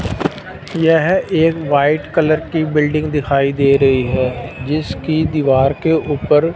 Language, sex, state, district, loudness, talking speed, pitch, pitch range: Hindi, male, Punjab, Fazilka, -15 LUFS, 130 wpm, 150 Hz, 140-160 Hz